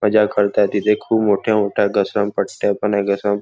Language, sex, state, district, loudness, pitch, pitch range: Marathi, male, Maharashtra, Nagpur, -18 LUFS, 105 Hz, 100-105 Hz